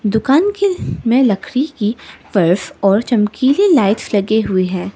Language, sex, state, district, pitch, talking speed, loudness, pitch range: Hindi, female, Arunachal Pradesh, Lower Dibang Valley, 220 Hz, 145 wpm, -15 LUFS, 200-265 Hz